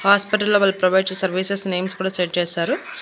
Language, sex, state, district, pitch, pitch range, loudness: Telugu, female, Andhra Pradesh, Annamaya, 190 Hz, 185-200 Hz, -20 LUFS